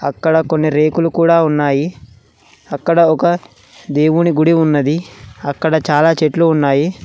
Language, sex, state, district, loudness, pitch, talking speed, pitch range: Telugu, male, Telangana, Mahabubabad, -14 LUFS, 155 Hz, 120 wpm, 145-165 Hz